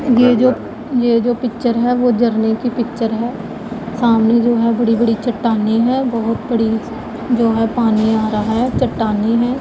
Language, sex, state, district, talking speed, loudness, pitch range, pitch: Hindi, female, Punjab, Pathankot, 175 wpm, -16 LUFS, 225-240 Hz, 230 Hz